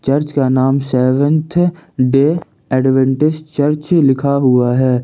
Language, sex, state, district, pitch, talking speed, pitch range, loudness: Hindi, male, Jharkhand, Ranchi, 135 Hz, 120 wpm, 130-150 Hz, -14 LUFS